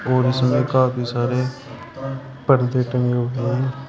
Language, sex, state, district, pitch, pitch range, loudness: Hindi, male, Uttar Pradesh, Shamli, 130 Hz, 125-130 Hz, -20 LUFS